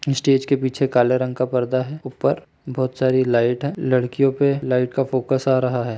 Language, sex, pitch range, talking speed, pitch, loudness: Chhattisgarhi, male, 125-135 Hz, 210 wpm, 130 Hz, -20 LUFS